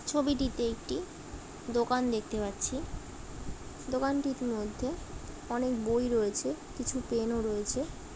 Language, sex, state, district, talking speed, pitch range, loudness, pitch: Bengali, female, West Bengal, Dakshin Dinajpur, 105 wpm, 225-255 Hz, -33 LUFS, 240 Hz